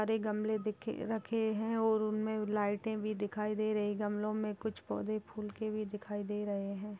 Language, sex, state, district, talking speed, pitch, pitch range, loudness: Hindi, female, Chhattisgarh, Kabirdham, 205 wpm, 215 Hz, 210-215 Hz, -36 LUFS